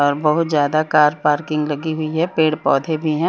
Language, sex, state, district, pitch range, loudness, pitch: Hindi, female, Chandigarh, Chandigarh, 150-160 Hz, -18 LUFS, 155 Hz